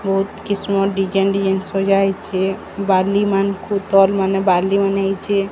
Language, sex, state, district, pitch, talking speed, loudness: Odia, male, Odisha, Sambalpur, 195 Hz, 130 wpm, -17 LUFS